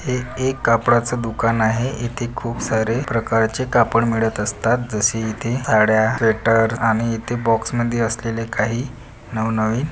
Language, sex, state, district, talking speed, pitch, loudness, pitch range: Marathi, male, Maharashtra, Pune, 140 wpm, 115 Hz, -19 LUFS, 110-120 Hz